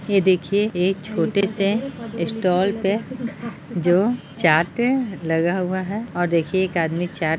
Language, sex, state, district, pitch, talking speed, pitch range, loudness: Hindi, female, Jharkhand, Jamtara, 190 Hz, 155 wpm, 175-220 Hz, -21 LUFS